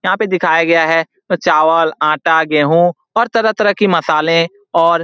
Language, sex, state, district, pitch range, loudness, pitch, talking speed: Hindi, male, Bihar, Saran, 160-200 Hz, -13 LUFS, 170 Hz, 165 wpm